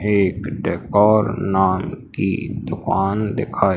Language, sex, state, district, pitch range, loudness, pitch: Hindi, male, Madhya Pradesh, Umaria, 95-105 Hz, -20 LUFS, 100 Hz